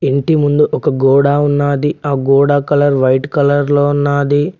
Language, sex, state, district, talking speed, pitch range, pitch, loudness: Telugu, male, Telangana, Mahabubabad, 155 wpm, 140-145 Hz, 145 Hz, -13 LUFS